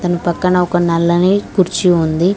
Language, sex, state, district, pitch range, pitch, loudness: Telugu, female, Telangana, Mahabubabad, 175-185 Hz, 175 Hz, -14 LUFS